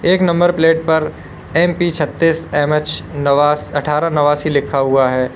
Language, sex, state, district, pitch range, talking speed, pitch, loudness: Hindi, male, Uttar Pradesh, Lalitpur, 145-165 Hz, 145 wpm, 150 Hz, -15 LUFS